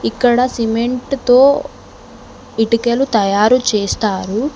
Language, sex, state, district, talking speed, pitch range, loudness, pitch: Telugu, female, Telangana, Mahabubabad, 80 wpm, 215-250 Hz, -14 LUFS, 235 Hz